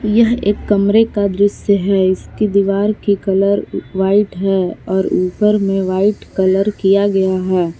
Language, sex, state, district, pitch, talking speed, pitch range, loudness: Hindi, female, Jharkhand, Palamu, 200 Hz, 155 wpm, 190-205 Hz, -15 LUFS